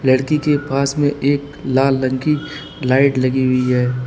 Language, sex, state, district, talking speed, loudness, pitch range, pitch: Hindi, male, Uttar Pradesh, Lalitpur, 175 wpm, -17 LUFS, 130-145 Hz, 135 Hz